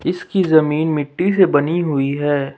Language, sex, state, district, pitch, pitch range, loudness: Hindi, male, Jharkhand, Ranchi, 155 Hz, 145-175 Hz, -17 LUFS